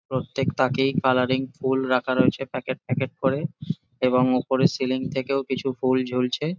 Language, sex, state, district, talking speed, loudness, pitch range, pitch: Bengali, male, West Bengal, Jalpaiguri, 145 wpm, -24 LUFS, 130-135 Hz, 130 Hz